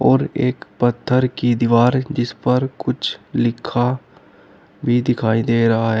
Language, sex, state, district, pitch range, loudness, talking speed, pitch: Hindi, male, Uttar Pradesh, Shamli, 115-125 Hz, -18 LUFS, 140 wpm, 120 Hz